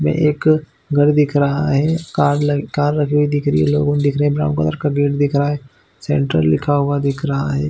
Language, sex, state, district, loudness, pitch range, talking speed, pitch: Hindi, male, Chhattisgarh, Bilaspur, -17 LUFS, 140-150 Hz, 225 wpm, 145 Hz